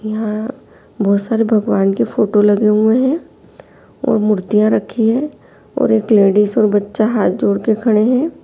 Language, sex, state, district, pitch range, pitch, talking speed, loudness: Hindi, female, Chhattisgarh, Kabirdham, 210-225 Hz, 215 Hz, 165 wpm, -15 LUFS